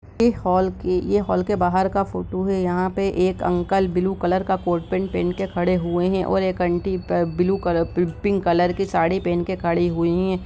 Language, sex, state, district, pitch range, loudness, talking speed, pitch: Hindi, male, Jharkhand, Jamtara, 175-190 Hz, -21 LUFS, 210 wpm, 185 Hz